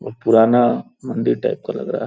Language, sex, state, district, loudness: Hindi, male, Uttar Pradesh, Gorakhpur, -18 LUFS